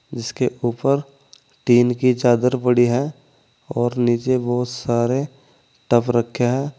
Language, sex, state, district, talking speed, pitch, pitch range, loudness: Hindi, male, Uttar Pradesh, Saharanpur, 125 wpm, 125 Hz, 120-135 Hz, -19 LUFS